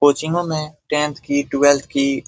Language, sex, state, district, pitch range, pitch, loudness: Hindi, male, Bihar, Jamui, 140-150 Hz, 145 Hz, -19 LUFS